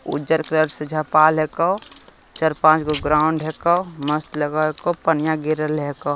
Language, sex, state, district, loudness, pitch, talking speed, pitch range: Hindi, male, Bihar, Begusarai, -19 LUFS, 155 Hz, 145 wpm, 150-160 Hz